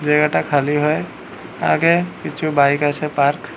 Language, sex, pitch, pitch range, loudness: Bengali, male, 150 Hz, 145-155 Hz, -18 LUFS